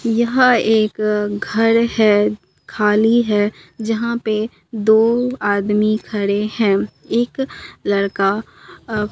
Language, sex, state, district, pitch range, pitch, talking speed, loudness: Hindi, female, Bihar, Katihar, 205-230 Hz, 215 Hz, 90 wpm, -17 LUFS